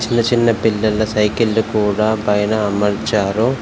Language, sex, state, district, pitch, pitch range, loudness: Telugu, male, Telangana, Komaram Bheem, 110 Hz, 105-110 Hz, -16 LUFS